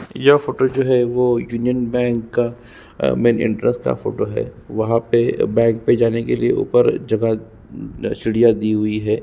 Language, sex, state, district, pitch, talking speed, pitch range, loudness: Hindi, male, Chhattisgarh, Sukma, 115 Hz, 170 wpm, 110-125 Hz, -18 LUFS